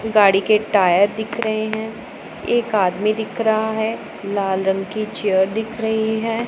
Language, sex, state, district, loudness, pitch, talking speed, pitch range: Hindi, female, Punjab, Pathankot, -19 LUFS, 220 Hz, 165 wpm, 200-220 Hz